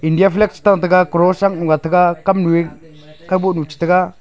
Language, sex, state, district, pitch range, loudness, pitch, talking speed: Wancho, male, Arunachal Pradesh, Longding, 160-190 Hz, -15 LUFS, 180 Hz, 230 wpm